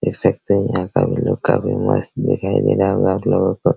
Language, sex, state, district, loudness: Hindi, male, Bihar, Araria, -18 LUFS